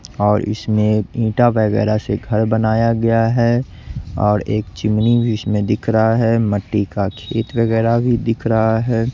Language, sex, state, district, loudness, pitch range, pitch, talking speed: Hindi, male, Bihar, West Champaran, -17 LUFS, 105-115 Hz, 110 Hz, 165 wpm